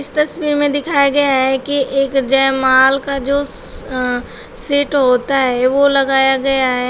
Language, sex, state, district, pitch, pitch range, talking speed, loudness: Hindi, female, Uttar Pradesh, Shamli, 275 Hz, 265-280 Hz, 165 wpm, -14 LUFS